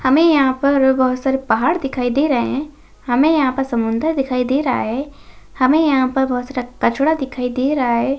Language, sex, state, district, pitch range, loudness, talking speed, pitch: Hindi, female, Bihar, Jahanabad, 255-285 Hz, -17 LUFS, 205 wpm, 265 Hz